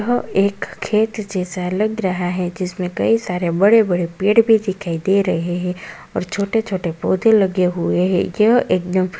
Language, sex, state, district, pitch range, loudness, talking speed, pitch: Kumaoni, female, Uttarakhand, Tehri Garhwal, 180-215 Hz, -18 LUFS, 185 wpm, 190 Hz